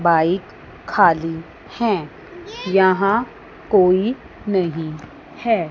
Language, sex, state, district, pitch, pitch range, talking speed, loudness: Hindi, female, Chandigarh, Chandigarh, 190 Hz, 165-230 Hz, 75 wpm, -19 LUFS